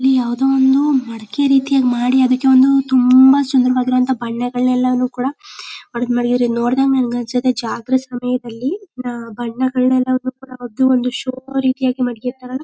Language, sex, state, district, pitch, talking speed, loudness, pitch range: Kannada, female, Karnataka, Mysore, 255 Hz, 125 wpm, -16 LUFS, 245-265 Hz